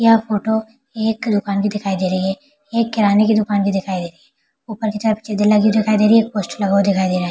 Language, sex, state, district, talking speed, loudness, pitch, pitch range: Hindi, female, Chhattisgarh, Balrampur, 280 wpm, -17 LUFS, 210 Hz, 200-220 Hz